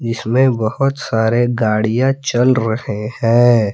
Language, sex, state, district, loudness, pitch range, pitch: Hindi, male, Jharkhand, Palamu, -15 LUFS, 110-125 Hz, 115 Hz